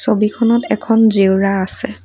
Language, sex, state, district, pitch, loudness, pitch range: Assamese, female, Assam, Kamrup Metropolitan, 210 Hz, -14 LUFS, 195-225 Hz